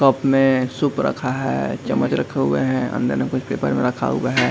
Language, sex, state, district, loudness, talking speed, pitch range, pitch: Hindi, male, Uttar Pradesh, Jalaun, -20 LUFS, 215 wpm, 125-135 Hz, 130 Hz